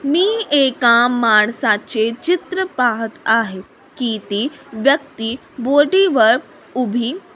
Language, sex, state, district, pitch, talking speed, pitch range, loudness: Marathi, female, Maharashtra, Sindhudurg, 250 Hz, 100 wpm, 225-290 Hz, -16 LUFS